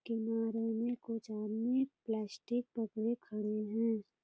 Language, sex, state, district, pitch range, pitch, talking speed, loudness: Hindi, female, Bihar, Purnia, 215-235 Hz, 225 Hz, 125 wpm, -37 LUFS